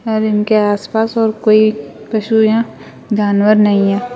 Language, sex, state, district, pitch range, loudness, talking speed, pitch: Hindi, female, Uttar Pradesh, Lalitpur, 210-220 Hz, -13 LUFS, 160 wpm, 215 Hz